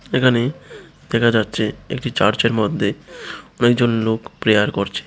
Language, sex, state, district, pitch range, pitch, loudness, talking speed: Bengali, male, Tripura, West Tripura, 115-120 Hz, 120 Hz, -18 LUFS, 130 wpm